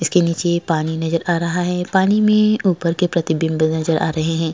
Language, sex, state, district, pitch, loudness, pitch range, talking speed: Hindi, female, Uttar Pradesh, Jalaun, 170 Hz, -18 LUFS, 160-180 Hz, 210 wpm